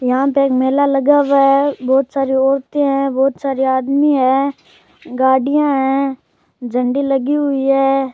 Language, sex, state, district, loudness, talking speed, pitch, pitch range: Rajasthani, male, Rajasthan, Churu, -15 LUFS, 155 wpm, 275 Hz, 265-280 Hz